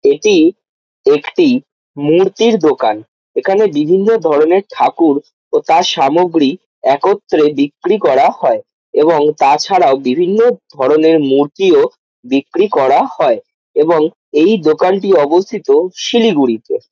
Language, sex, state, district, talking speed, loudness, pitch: Bengali, male, West Bengal, Jalpaiguri, 100 wpm, -12 LUFS, 225 Hz